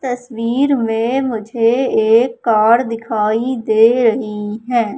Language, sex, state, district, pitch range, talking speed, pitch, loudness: Hindi, female, Madhya Pradesh, Katni, 225-245 Hz, 110 wpm, 230 Hz, -15 LUFS